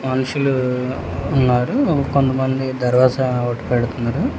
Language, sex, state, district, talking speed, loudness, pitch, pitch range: Telugu, male, Telangana, Hyderabad, 70 wpm, -18 LUFS, 130 Hz, 125-135 Hz